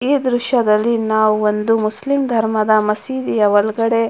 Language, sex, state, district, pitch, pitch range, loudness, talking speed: Kannada, female, Karnataka, Mysore, 220 Hz, 215-245 Hz, -16 LUFS, 130 wpm